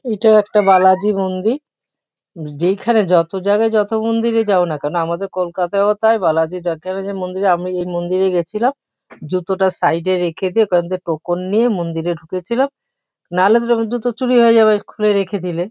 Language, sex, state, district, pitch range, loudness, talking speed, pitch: Bengali, female, West Bengal, Kolkata, 175-220 Hz, -16 LUFS, 165 wpm, 190 Hz